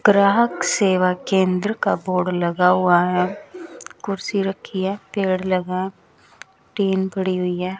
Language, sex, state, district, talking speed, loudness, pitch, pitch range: Hindi, female, Bihar, West Champaran, 140 wpm, -20 LUFS, 190 Hz, 180-195 Hz